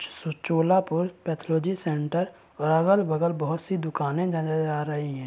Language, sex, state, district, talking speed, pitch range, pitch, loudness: Hindi, male, Uttar Pradesh, Varanasi, 135 wpm, 155-175 Hz, 165 Hz, -26 LUFS